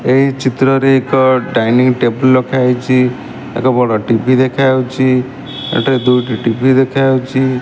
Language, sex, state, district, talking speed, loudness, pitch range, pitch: Odia, male, Odisha, Malkangiri, 135 wpm, -12 LUFS, 125-130 Hz, 130 Hz